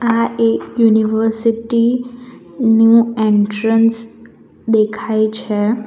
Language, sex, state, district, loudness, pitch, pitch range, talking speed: Gujarati, female, Gujarat, Valsad, -15 LUFS, 225 Hz, 220-230 Hz, 70 wpm